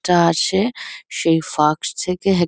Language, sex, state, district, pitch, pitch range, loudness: Bengali, female, West Bengal, Kolkata, 175 Hz, 160-190 Hz, -18 LUFS